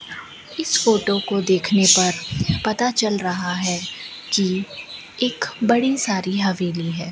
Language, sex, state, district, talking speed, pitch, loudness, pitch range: Hindi, female, Rajasthan, Bikaner, 125 wpm, 195 Hz, -20 LUFS, 180-220 Hz